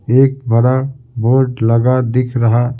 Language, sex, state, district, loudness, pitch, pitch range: Hindi, male, Bihar, Patna, -14 LUFS, 125 Hz, 115-130 Hz